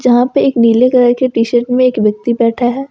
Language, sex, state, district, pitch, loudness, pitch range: Hindi, female, Jharkhand, Ranchi, 245 Hz, -12 LUFS, 230-255 Hz